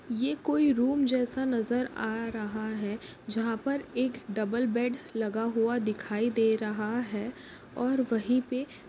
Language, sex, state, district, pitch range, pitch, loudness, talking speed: Hindi, female, Maharashtra, Pune, 220-255 Hz, 235 Hz, -30 LUFS, 150 wpm